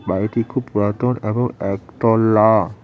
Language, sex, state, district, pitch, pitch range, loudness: Bengali, male, West Bengal, Cooch Behar, 110 Hz, 105-115 Hz, -18 LUFS